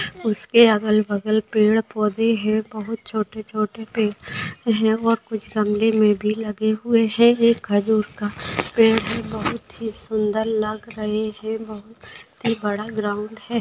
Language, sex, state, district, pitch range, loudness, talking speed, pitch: Hindi, female, Maharashtra, Pune, 215-225 Hz, -21 LUFS, 150 wpm, 215 Hz